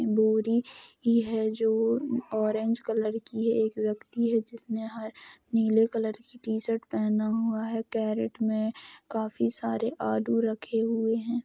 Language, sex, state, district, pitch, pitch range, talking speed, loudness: Hindi, female, Bihar, Gopalganj, 225 Hz, 220-230 Hz, 155 wpm, -28 LUFS